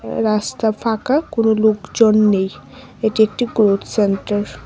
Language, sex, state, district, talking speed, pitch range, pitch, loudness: Bengali, female, Tripura, West Tripura, 130 wpm, 210-225 Hz, 220 Hz, -17 LUFS